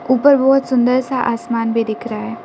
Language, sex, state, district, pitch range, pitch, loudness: Hindi, female, Arunachal Pradesh, Lower Dibang Valley, 230-260 Hz, 240 Hz, -16 LUFS